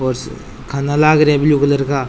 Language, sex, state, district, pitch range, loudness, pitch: Rajasthani, male, Rajasthan, Churu, 140-150 Hz, -14 LUFS, 140 Hz